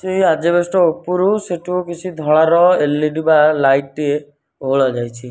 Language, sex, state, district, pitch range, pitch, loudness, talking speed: Odia, male, Odisha, Nuapada, 145-180 Hz, 160 Hz, -15 LUFS, 135 wpm